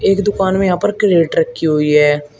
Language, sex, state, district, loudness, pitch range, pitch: Hindi, male, Uttar Pradesh, Shamli, -14 LUFS, 150-200 Hz, 185 Hz